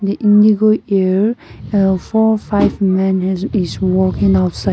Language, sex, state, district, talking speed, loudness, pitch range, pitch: English, female, Nagaland, Kohima, 125 wpm, -14 LUFS, 185-210 Hz, 195 Hz